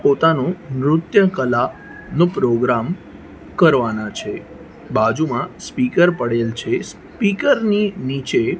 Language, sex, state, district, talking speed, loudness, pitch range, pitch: Gujarati, male, Gujarat, Gandhinagar, 90 wpm, -18 LUFS, 120-185 Hz, 145 Hz